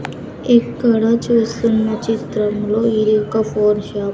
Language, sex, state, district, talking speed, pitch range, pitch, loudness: Telugu, female, Andhra Pradesh, Sri Satya Sai, 130 wpm, 210-230 Hz, 220 Hz, -16 LUFS